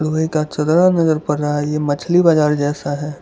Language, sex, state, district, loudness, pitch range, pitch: Hindi, male, Gujarat, Valsad, -16 LUFS, 150-160 Hz, 150 Hz